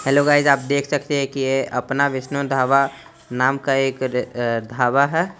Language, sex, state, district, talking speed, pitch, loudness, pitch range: Hindi, male, Chandigarh, Chandigarh, 190 wpm, 135 Hz, -19 LUFS, 130-140 Hz